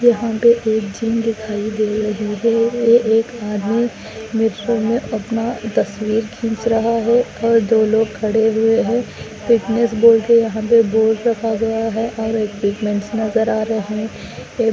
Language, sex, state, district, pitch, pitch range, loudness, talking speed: Hindi, female, Andhra Pradesh, Anantapur, 225 Hz, 215-230 Hz, -17 LUFS, 100 wpm